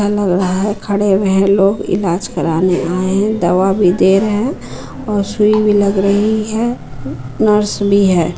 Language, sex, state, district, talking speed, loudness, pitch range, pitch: Hindi, female, Bihar, Muzaffarpur, 155 wpm, -14 LUFS, 185-210 Hz, 200 Hz